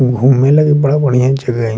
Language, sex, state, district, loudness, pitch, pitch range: Bajjika, male, Bihar, Vaishali, -11 LUFS, 130 Hz, 125-145 Hz